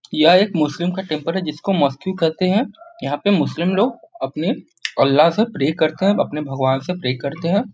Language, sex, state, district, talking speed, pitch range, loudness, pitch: Hindi, male, Bihar, Muzaffarpur, 210 wpm, 150-200 Hz, -19 LUFS, 175 Hz